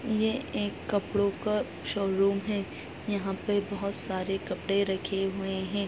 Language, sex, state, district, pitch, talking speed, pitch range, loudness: Hindi, female, Bihar, Muzaffarpur, 200 Hz, 145 wpm, 195-205 Hz, -30 LUFS